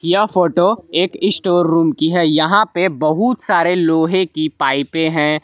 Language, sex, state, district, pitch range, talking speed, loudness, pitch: Hindi, male, Jharkhand, Palamu, 155-185 Hz, 165 wpm, -15 LUFS, 170 Hz